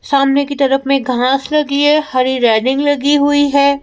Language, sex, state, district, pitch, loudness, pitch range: Hindi, female, Madhya Pradesh, Bhopal, 280 Hz, -13 LUFS, 265-285 Hz